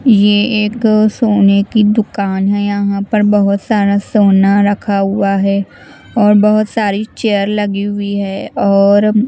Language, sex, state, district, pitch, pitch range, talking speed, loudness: Hindi, female, Chandigarh, Chandigarh, 205 Hz, 200-215 Hz, 140 wpm, -12 LUFS